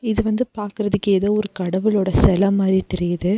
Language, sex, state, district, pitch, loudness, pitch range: Tamil, female, Tamil Nadu, Nilgiris, 200 Hz, -19 LUFS, 190-210 Hz